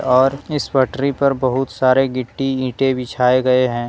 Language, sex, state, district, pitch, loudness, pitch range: Hindi, male, Jharkhand, Deoghar, 130 Hz, -17 LUFS, 125-135 Hz